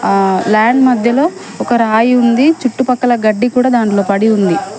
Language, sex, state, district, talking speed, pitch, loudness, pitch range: Telugu, female, Telangana, Mahabubabad, 150 wpm, 235 Hz, -12 LUFS, 215-250 Hz